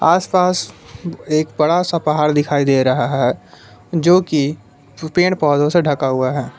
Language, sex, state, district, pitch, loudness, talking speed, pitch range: Hindi, male, Jharkhand, Palamu, 150 Hz, -16 LUFS, 155 wpm, 145-175 Hz